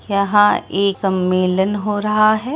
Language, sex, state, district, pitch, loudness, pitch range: Hindi, female, Bihar, Araria, 200 Hz, -16 LUFS, 190-210 Hz